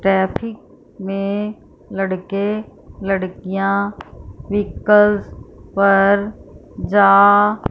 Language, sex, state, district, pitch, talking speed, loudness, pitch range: Hindi, female, Punjab, Fazilka, 200 Hz, 55 wpm, -17 LUFS, 195-205 Hz